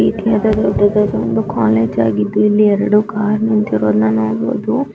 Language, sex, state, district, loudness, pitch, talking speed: Kannada, female, Karnataka, Dakshina Kannada, -14 LUFS, 205 Hz, 60 wpm